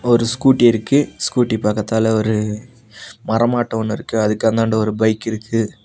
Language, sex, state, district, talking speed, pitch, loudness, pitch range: Tamil, male, Tamil Nadu, Nilgiris, 145 wpm, 110 Hz, -17 LUFS, 110-120 Hz